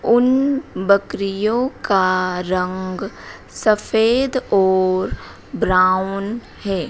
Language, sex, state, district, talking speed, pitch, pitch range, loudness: Hindi, female, Madhya Pradesh, Dhar, 70 wpm, 195 Hz, 185-230 Hz, -18 LUFS